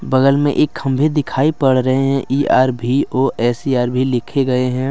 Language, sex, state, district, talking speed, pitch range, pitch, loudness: Hindi, male, Jharkhand, Deoghar, 145 wpm, 125-135 Hz, 130 Hz, -16 LUFS